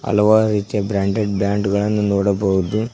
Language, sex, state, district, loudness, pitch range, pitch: Kannada, male, Karnataka, Koppal, -18 LUFS, 100-105 Hz, 100 Hz